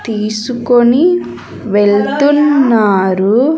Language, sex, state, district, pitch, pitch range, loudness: Telugu, female, Andhra Pradesh, Sri Satya Sai, 240 Hz, 205-285 Hz, -11 LUFS